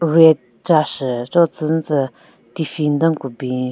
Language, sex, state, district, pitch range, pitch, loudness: Rengma, female, Nagaland, Kohima, 130-160 Hz, 155 Hz, -18 LUFS